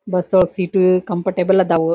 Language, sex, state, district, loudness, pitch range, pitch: Kannada, female, Karnataka, Dharwad, -17 LUFS, 175-190 Hz, 185 Hz